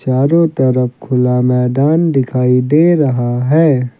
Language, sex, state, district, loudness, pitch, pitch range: Hindi, male, Uttar Pradesh, Lucknow, -13 LUFS, 130 Hz, 125-150 Hz